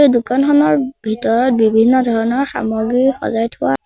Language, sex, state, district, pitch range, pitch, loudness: Assamese, male, Assam, Sonitpur, 225-265 Hz, 245 Hz, -15 LUFS